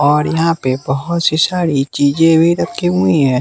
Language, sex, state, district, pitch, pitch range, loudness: Hindi, male, Bihar, West Champaran, 155 Hz, 140-170 Hz, -14 LUFS